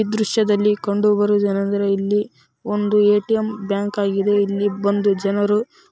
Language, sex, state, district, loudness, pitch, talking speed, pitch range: Kannada, female, Karnataka, Raichur, -19 LUFS, 205 Hz, 140 wpm, 200-210 Hz